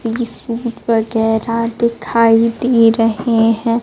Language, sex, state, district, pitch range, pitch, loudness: Hindi, female, Bihar, Kaimur, 225-235 Hz, 230 Hz, -15 LUFS